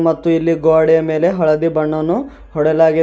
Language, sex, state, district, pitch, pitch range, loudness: Kannada, male, Karnataka, Bidar, 160 Hz, 160-165 Hz, -15 LUFS